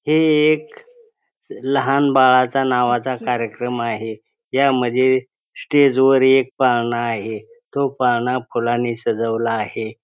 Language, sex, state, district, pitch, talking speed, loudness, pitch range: Marathi, male, Maharashtra, Pune, 130 Hz, 105 wpm, -18 LUFS, 120-140 Hz